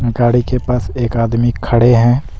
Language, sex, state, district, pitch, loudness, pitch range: Hindi, male, Jharkhand, Deoghar, 120 Hz, -14 LUFS, 115-125 Hz